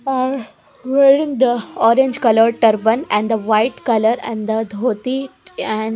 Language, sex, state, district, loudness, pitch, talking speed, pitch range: English, female, Haryana, Jhajjar, -16 LUFS, 230 Hz, 140 wpm, 220-265 Hz